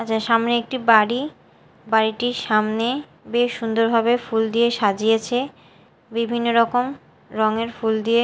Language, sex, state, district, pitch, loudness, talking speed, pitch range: Bengali, female, Odisha, Malkangiri, 230 Hz, -20 LUFS, 95 wpm, 220-240 Hz